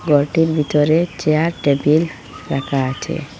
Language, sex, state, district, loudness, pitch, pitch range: Bengali, female, Assam, Hailakandi, -18 LUFS, 155 Hz, 140-160 Hz